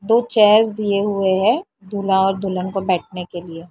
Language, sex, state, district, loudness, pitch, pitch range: Hindi, female, Maharashtra, Mumbai Suburban, -18 LUFS, 195 Hz, 185-210 Hz